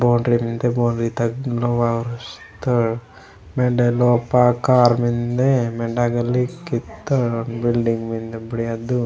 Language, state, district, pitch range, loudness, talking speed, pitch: Gondi, Chhattisgarh, Sukma, 115-125 Hz, -20 LUFS, 115 wpm, 120 Hz